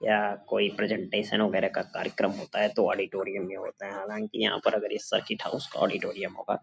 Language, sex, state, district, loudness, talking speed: Hindi, male, Uttar Pradesh, Gorakhpur, -29 LUFS, 210 wpm